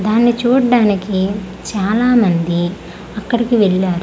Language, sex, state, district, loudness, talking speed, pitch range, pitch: Telugu, female, Andhra Pradesh, Manyam, -15 LUFS, 75 wpm, 185-235 Hz, 205 Hz